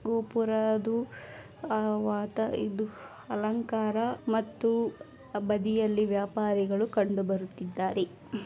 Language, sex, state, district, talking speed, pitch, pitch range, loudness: Kannada, male, Karnataka, Mysore, 65 wpm, 215 Hz, 205-225 Hz, -30 LUFS